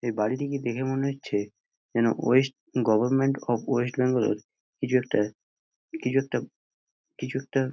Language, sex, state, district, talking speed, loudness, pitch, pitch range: Bengali, male, West Bengal, Jhargram, 145 wpm, -27 LUFS, 130 Hz, 115-135 Hz